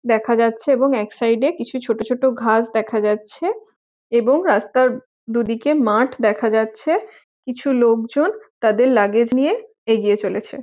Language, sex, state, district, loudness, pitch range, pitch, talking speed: Bengali, female, West Bengal, Jhargram, -18 LUFS, 220-270 Hz, 235 Hz, 145 wpm